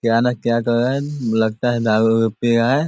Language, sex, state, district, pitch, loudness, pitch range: Hindi, male, Bihar, Sitamarhi, 115 Hz, -18 LUFS, 115-125 Hz